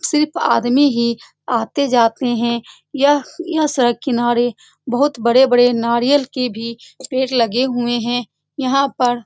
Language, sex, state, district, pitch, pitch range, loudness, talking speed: Hindi, female, Bihar, Saran, 245 Hz, 235-275 Hz, -17 LUFS, 130 wpm